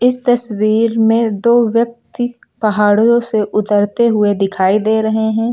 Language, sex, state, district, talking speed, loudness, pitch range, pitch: Hindi, female, Uttar Pradesh, Lucknow, 140 wpm, -13 LUFS, 210-235 Hz, 220 Hz